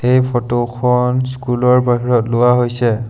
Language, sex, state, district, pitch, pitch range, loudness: Assamese, male, Assam, Sonitpur, 125 Hz, 120-125 Hz, -15 LUFS